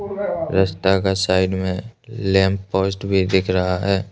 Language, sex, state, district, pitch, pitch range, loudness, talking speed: Hindi, male, Arunachal Pradesh, Lower Dibang Valley, 95 Hz, 95-100 Hz, -20 LUFS, 145 wpm